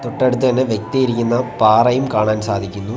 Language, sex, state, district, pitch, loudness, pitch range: Malayalam, male, Kerala, Kollam, 120 Hz, -16 LUFS, 110-130 Hz